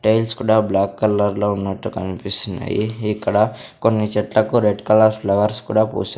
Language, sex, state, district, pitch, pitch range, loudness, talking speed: Telugu, male, Andhra Pradesh, Sri Satya Sai, 105 Hz, 100-110 Hz, -19 LUFS, 135 wpm